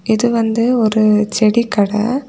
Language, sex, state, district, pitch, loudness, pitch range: Tamil, female, Tamil Nadu, Kanyakumari, 220 Hz, -14 LUFS, 215-235 Hz